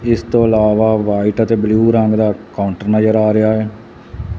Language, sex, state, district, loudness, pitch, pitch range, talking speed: Punjabi, male, Punjab, Fazilka, -14 LUFS, 110 Hz, 105-115 Hz, 175 wpm